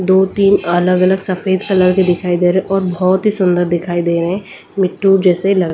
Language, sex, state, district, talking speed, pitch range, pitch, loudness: Hindi, female, Delhi, New Delhi, 220 wpm, 180-190 Hz, 185 Hz, -14 LUFS